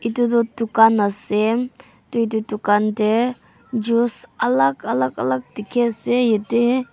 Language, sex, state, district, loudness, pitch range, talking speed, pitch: Nagamese, female, Nagaland, Dimapur, -19 LUFS, 210-240 Hz, 120 wpm, 230 Hz